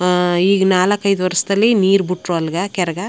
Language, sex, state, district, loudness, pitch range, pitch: Kannada, female, Karnataka, Chamarajanagar, -16 LUFS, 180-195 Hz, 185 Hz